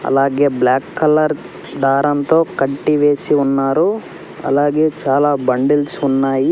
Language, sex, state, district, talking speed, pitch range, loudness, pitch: Telugu, male, Andhra Pradesh, Sri Satya Sai, 100 wpm, 135-150 Hz, -15 LUFS, 145 Hz